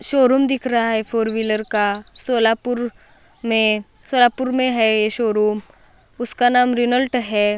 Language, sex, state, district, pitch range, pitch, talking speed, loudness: Hindi, female, Maharashtra, Solapur, 215-245 Hz, 230 Hz, 135 wpm, -18 LUFS